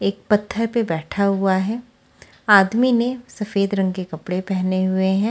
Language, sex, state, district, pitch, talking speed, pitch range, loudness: Hindi, female, Haryana, Charkhi Dadri, 200 Hz, 170 wpm, 185-225 Hz, -20 LUFS